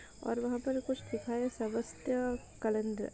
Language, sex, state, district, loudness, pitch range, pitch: Hindi, female, Uttar Pradesh, Ghazipur, -36 LUFS, 225-250 Hz, 240 Hz